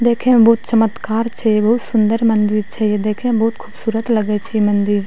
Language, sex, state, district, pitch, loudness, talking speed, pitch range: Maithili, female, Bihar, Madhepura, 225 Hz, -16 LUFS, 190 wpm, 210-230 Hz